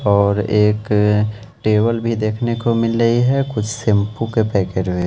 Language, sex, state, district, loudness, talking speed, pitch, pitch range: Hindi, male, Delhi, New Delhi, -17 LUFS, 180 wpm, 110 Hz, 105-115 Hz